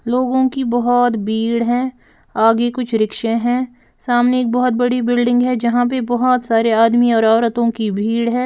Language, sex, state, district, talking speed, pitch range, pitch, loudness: Hindi, female, Bihar, Patna, 175 wpm, 230-250 Hz, 240 Hz, -16 LUFS